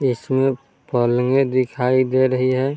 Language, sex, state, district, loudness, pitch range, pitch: Hindi, male, Bihar, Vaishali, -19 LUFS, 125-135 Hz, 130 Hz